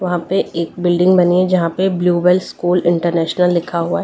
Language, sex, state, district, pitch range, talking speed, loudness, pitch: Hindi, female, Delhi, New Delhi, 170-180 Hz, 195 wpm, -15 LUFS, 175 Hz